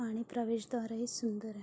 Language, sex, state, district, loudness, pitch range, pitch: Marathi, female, Maharashtra, Sindhudurg, -37 LUFS, 225-235 Hz, 230 Hz